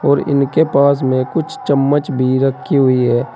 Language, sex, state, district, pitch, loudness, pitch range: Hindi, male, Uttar Pradesh, Saharanpur, 140 Hz, -14 LUFS, 130-140 Hz